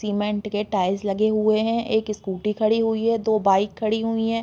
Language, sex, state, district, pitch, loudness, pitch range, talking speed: Hindi, female, Uttar Pradesh, Varanasi, 215 Hz, -22 LUFS, 205-225 Hz, 215 wpm